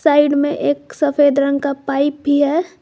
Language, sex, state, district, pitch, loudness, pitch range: Hindi, female, Jharkhand, Garhwa, 285 Hz, -16 LUFS, 280-295 Hz